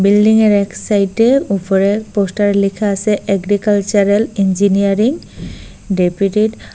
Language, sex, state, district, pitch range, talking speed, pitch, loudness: Bengali, female, Assam, Hailakandi, 195-210 Hz, 105 wpm, 200 Hz, -14 LUFS